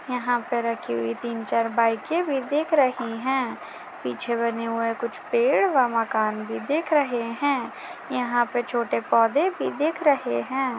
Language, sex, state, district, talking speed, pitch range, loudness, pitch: Hindi, female, Maharashtra, Chandrapur, 165 wpm, 230-275 Hz, -24 LUFS, 240 Hz